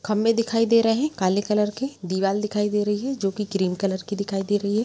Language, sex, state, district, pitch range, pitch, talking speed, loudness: Hindi, female, Chhattisgarh, Rajnandgaon, 195-225 Hz, 210 Hz, 270 wpm, -23 LUFS